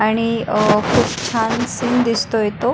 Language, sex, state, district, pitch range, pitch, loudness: Marathi, female, Maharashtra, Pune, 215-235 Hz, 225 Hz, -17 LUFS